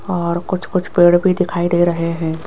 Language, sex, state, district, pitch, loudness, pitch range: Hindi, female, Rajasthan, Jaipur, 175 Hz, -16 LUFS, 170-180 Hz